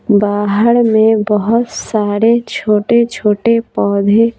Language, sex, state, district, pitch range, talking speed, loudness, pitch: Hindi, female, Bihar, Patna, 205-230 Hz, 95 wpm, -13 LUFS, 220 Hz